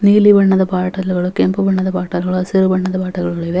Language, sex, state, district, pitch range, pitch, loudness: Kannada, female, Karnataka, Dharwad, 185-190 Hz, 185 Hz, -15 LUFS